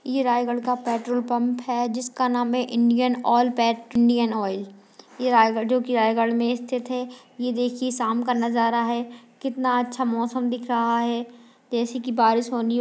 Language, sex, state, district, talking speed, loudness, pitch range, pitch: Hindi, female, Chhattisgarh, Raigarh, 180 wpm, -23 LUFS, 235-250 Hz, 240 Hz